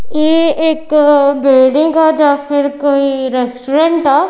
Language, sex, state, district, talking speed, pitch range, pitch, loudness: Punjabi, female, Punjab, Kapurthala, 125 wpm, 275-315 Hz, 290 Hz, -11 LUFS